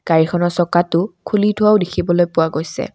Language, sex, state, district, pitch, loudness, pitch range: Assamese, female, Assam, Kamrup Metropolitan, 175 Hz, -16 LUFS, 170-195 Hz